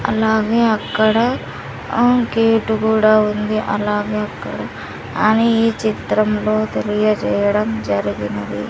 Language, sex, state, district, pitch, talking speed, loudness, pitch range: Telugu, female, Andhra Pradesh, Sri Satya Sai, 215 Hz, 90 wpm, -17 LUFS, 210-220 Hz